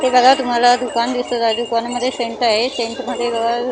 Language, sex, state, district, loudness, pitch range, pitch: Marathi, female, Maharashtra, Mumbai Suburban, -17 LUFS, 235-250 Hz, 245 Hz